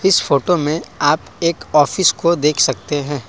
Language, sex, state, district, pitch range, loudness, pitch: Hindi, male, Assam, Kamrup Metropolitan, 145-170 Hz, -16 LUFS, 150 Hz